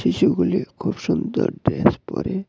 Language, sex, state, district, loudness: Bengali, male, Tripura, West Tripura, -21 LUFS